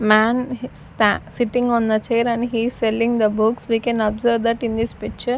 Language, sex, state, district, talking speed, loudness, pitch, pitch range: English, female, Chandigarh, Chandigarh, 200 wpm, -20 LUFS, 230 Hz, 225-240 Hz